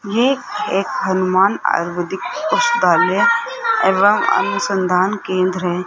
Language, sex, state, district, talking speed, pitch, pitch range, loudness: Hindi, female, Rajasthan, Jaipur, 90 wpm, 195 Hz, 185-275 Hz, -16 LUFS